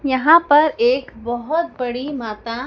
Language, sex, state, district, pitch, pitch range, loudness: Hindi, female, Madhya Pradesh, Dhar, 260 Hz, 240-295 Hz, -18 LUFS